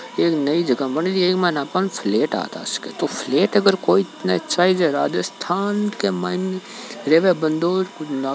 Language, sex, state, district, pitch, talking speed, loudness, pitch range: Hindi, male, Rajasthan, Nagaur, 180 Hz, 185 wpm, -20 LUFS, 155-185 Hz